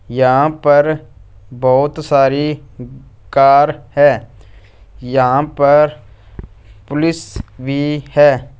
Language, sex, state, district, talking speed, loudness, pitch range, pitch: Hindi, male, Punjab, Fazilka, 75 wpm, -13 LUFS, 110-145 Hz, 130 Hz